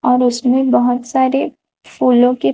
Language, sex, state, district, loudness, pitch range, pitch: Hindi, female, Chhattisgarh, Raipur, -14 LUFS, 245-260 Hz, 250 Hz